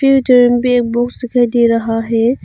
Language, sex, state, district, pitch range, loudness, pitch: Hindi, female, Arunachal Pradesh, Longding, 235-250 Hz, -13 LUFS, 240 Hz